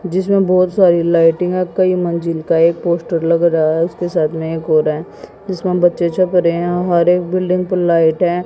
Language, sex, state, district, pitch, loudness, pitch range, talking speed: Hindi, female, Haryana, Jhajjar, 175 Hz, -15 LUFS, 165-180 Hz, 190 wpm